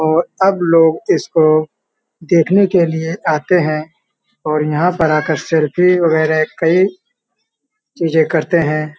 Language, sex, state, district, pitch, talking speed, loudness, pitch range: Hindi, male, Uttar Pradesh, Hamirpur, 165 Hz, 125 wpm, -14 LUFS, 155-180 Hz